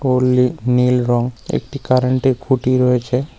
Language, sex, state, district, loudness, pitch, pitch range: Bengali, male, West Bengal, Cooch Behar, -17 LUFS, 125 Hz, 125-130 Hz